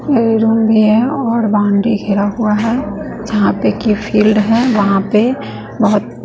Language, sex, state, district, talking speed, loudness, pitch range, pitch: Hindi, female, Bihar, West Champaran, 175 wpm, -13 LUFS, 210-230 Hz, 215 Hz